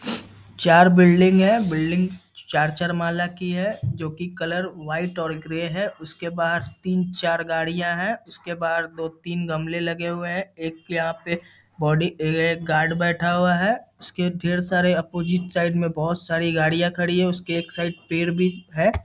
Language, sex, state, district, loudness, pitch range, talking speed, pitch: Hindi, male, Bihar, Muzaffarpur, -22 LUFS, 165-180 Hz, 175 wpm, 170 Hz